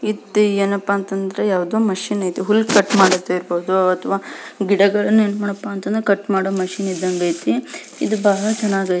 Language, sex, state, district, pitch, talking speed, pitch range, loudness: Kannada, female, Karnataka, Belgaum, 200 Hz, 135 wpm, 190-210 Hz, -18 LUFS